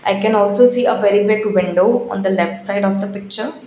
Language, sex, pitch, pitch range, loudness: English, female, 205 Hz, 200-220 Hz, -16 LUFS